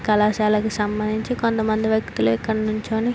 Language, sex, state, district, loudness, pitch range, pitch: Telugu, female, Andhra Pradesh, Srikakulam, -21 LUFS, 210-220 Hz, 215 Hz